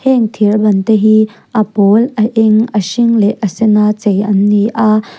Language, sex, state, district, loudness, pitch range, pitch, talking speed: Mizo, female, Mizoram, Aizawl, -11 LUFS, 205-220 Hz, 215 Hz, 220 wpm